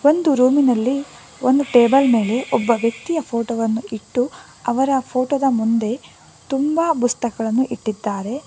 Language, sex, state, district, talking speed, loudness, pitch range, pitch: Kannada, female, Karnataka, Bangalore, 120 wpm, -19 LUFS, 230-275 Hz, 250 Hz